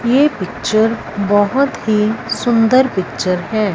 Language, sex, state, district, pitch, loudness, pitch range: Hindi, female, Punjab, Fazilka, 220 Hz, -15 LUFS, 205-245 Hz